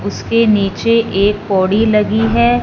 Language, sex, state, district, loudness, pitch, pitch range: Hindi, female, Punjab, Fazilka, -13 LUFS, 215 Hz, 205-230 Hz